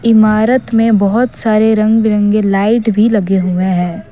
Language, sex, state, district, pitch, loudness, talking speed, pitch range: Hindi, female, Assam, Kamrup Metropolitan, 215 Hz, -12 LUFS, 160 wpm, 200-225 Hz